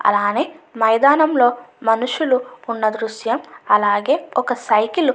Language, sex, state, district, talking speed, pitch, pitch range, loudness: Telugu, female, Andhra Pradesh, Anantapur, 115 wpm, 245 Hz, 220-275 Hz, -18 LUFS